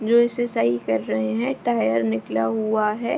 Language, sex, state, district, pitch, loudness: Hindi, female, Bihar, Begusarai, 210 Hz, -22 LUFS